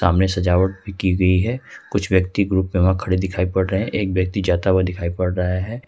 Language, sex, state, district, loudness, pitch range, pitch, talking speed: Hindi, male, Jharkhand, Ranchi, -20 LUFS, 90-95 Hz, 95 Hz, 225 wpm